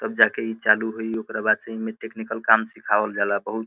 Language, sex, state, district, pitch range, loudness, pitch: Bhojpuri, male, Uttar Pradesh, Deoria, 105-110 Hz, -23 LUFS, 110 Hz